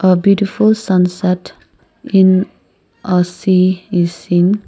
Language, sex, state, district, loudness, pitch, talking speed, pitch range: English, female, Nagaland, Kohima, -14 LUFS, 185 Hz, 105 wpm, 180-200 Hz